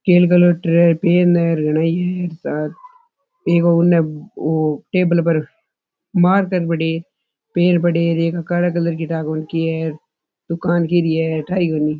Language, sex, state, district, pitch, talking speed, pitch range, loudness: Rajasthani, male, Rajasthan, Churu, 170 Hz, 150 wpm, 160-175 Hz, -17 LUFS